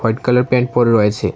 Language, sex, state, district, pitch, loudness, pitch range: Bengali, male, Tripura, West Tripura, 120 Hz, -15 LUFS, 110-125 Hz